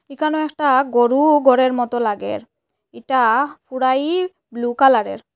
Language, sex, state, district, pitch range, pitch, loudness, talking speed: Bengali, female, Assam, Hailakandi, 245-300 Hz, 265 Hz, -17 LUFS, 110 wpm